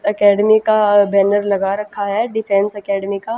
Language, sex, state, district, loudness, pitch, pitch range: Hindi, female, Haryana, Jhajjar, -15 LUFS, 205 Hz, 200-215 Hz